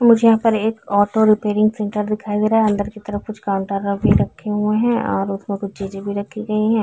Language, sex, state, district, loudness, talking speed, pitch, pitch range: Hindi, female, Chhattisgarh, Rajnandgaon, -19 LUFS, 235 wpm, 210 Hz, 200-220 Hz